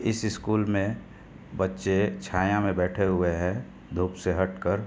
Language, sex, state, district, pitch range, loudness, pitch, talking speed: Hindi, male, Uttar Pradesh, Hamirpur, 90-105 Hz, -27 LUFS, 95 Hz, 145 wpm